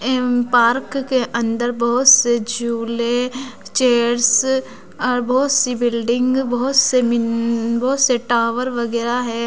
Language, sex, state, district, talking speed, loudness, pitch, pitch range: Hindi, female, Bihar, Kaimur, 125 wpm, -17 LUFS, 245 Hz, 235-255 Hz